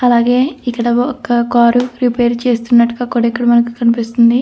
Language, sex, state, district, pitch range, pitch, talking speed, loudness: Telugu, female, Andhra Pradesh, Anantapur, 235-245 Hz, 240 Hz, 110 wpm, -13 LUFS